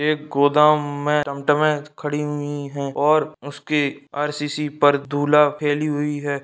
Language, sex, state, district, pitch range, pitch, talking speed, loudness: Hindi, male, Bihar, Saharsa, 145-150 Hz, 145 Hz, 160 wpm, -20 LUFS